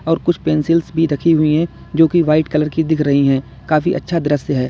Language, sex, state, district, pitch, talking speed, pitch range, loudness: Hindi, male, Uttar Pradesh, Lalitpur, 155 Hz, 245 wpm, 150-165 Hz, -16 LUFS